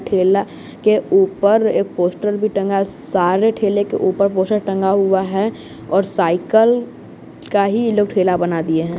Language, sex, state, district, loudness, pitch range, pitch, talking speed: Hindi, male, Bihar, West Champaran, -17 LUFS, 190-210 Hz, 195 Hz, 165 wpm